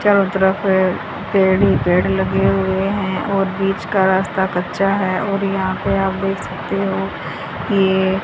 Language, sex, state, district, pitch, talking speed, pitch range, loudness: Hindi, female, Haryana, Rohtak, 190 Hz, 180 wpm, 190-195 Hz, -18 LUFS